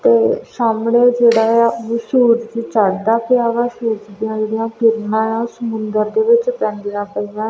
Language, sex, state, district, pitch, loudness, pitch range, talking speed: Punjabi, female, Punjab, Kapurthala, 230 Hz, -16 LUFS, 220-240 Hz, 145 wpm